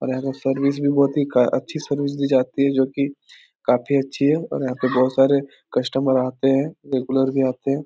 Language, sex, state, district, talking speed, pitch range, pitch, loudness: Hindi, male, Bihar, Supaul, 215 wpm, 130-140 Hz, 135 Hz, -21 LUFS